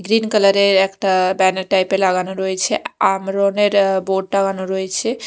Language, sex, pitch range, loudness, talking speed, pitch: Bengali, female, 190-200 Hz, -17 LUFS, 150 wpm, 195 Hz